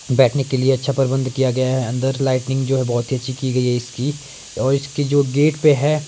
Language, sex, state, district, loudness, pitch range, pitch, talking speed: Hindi, male, Himachal Pradesh, Shimla, -19 LUFS, 130-140 Hz, 135 Hz, 245 wpm